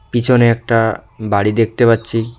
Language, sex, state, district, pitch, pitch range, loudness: Bengali, male, West Bengal, Cooch Behar, 115 Hz, 110-120 Hz, -14 LUFS